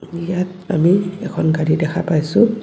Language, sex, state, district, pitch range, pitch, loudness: Assamese, female, Assam, Kamrup Metropolitan, 160-195 Hz, 180 Hz, -18 LUFS